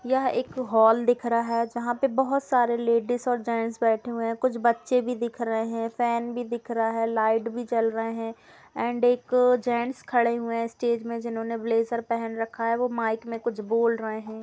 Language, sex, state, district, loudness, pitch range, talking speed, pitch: Hindi, female, Bihar, Jamui, -26 LUFS, 230-245 Hz, 215 wpm, 235 Hz